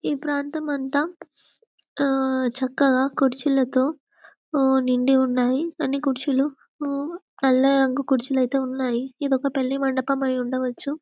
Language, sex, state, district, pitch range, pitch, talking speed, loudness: Telugu, female, Telangana, Karimnagar, 260-285 Hz, 270 Hz, 110 wpm, -23 LUFS